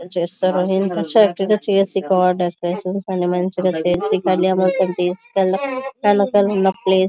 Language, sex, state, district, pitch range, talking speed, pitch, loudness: Telugu, female, Andhra Pradesh, Visakhapatnam, 180-195 Hz, 95 wpm, 185 Hz, -18 LUFS